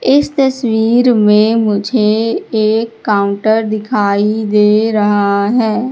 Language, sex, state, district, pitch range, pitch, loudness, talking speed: Hindi, female, Madhya Pradesh, Katni, 210-230 Hz, 215 Hz, -12 LUFS, 100 wpm